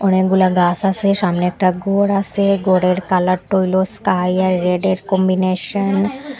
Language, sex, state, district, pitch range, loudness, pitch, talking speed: Bengali, female, Assam, Hailakandi, 185-195 Hz, -16 LUFS, 190 Hz, 160 wpm